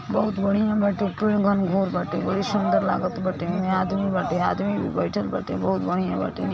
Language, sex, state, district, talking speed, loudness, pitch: Hindi, female, Uttar Pradesh, Ghazipur, 185 wpm, -24 LUFS, 185 Hz